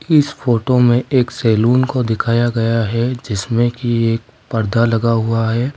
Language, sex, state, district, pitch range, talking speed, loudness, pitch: Hindi, male, Uttar Pradesh, Lalitpur, 115-125 Hz, 165 wpm, -16 LUFS, 120 Hz